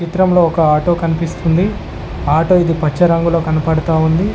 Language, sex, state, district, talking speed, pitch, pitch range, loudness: Telugu, male, Telangana, Mahabubabad, 140 wpm, 165 Hz, 160-175 Hz, -14 LUFS